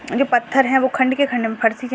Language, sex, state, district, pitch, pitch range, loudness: Hindi, female, Uttar Pradesh, Ghazipur, 255 Hz, 235-270 Hz, -18 LUFS